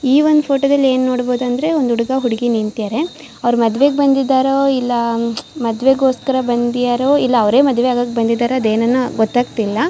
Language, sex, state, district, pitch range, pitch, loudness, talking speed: Kannada, female, Karnataka, Shimoga, 235-270 Hz, 250 Hz, -15 LUFS, 150 wpm